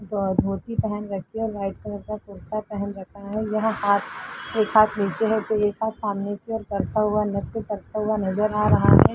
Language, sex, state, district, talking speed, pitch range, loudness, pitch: Hindi, female, Uttar Pradesh, Jalaun, 215 wpm, 200-215 Hz, -24 LUFS, 210 Hz